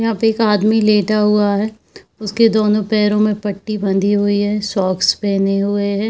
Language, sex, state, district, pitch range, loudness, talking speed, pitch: Hindi, female, Chhattisgarh, Bilaspur, 205-215 Hz, -16 LUFS, 185 wpm, 210 Hz